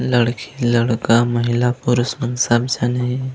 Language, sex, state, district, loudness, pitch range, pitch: Chhattisgarhi, male, Chhattisgarh, Raigarh, -18 LUFS, 120-125 Hz, 120 Hz